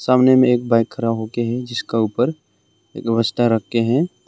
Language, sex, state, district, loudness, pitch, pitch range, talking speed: Hindi, male, Arunachal Pradesh, Longding, -18 LUFS, 115 Hz, 115-125 Hz, 195 wpm